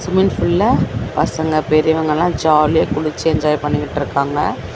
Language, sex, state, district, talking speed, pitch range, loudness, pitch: Tamil, female, Tamil Nadu, Chennai, 100 wpm, 150-160 Hz, -16 LUFS, 155 Hz